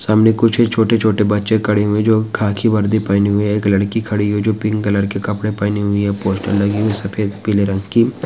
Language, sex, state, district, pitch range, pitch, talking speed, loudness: Hindi, male, Chhattisgarh, Korba, 100-110 Hz, 105 Hz, 245 wpm, -16 LUFS